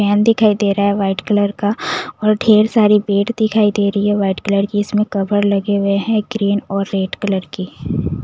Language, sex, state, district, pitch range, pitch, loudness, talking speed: Hindi, female, Punjab, Kapurthala, 200-215 Hz, 205 Hz, -16 LUFS, 210 wpm